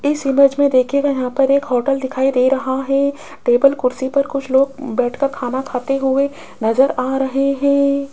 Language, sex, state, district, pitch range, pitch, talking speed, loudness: Hindi, female, Rajasthan, Jaipur, 260-280 Hz, 270 Hz, 185 wpm, -17 LUFS